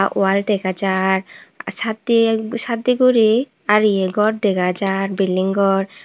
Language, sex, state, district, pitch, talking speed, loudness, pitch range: Chakma, female, Tripura, Unakoti, 200 Hz, 120 wpm, -18 LUFS, 195-225 Hz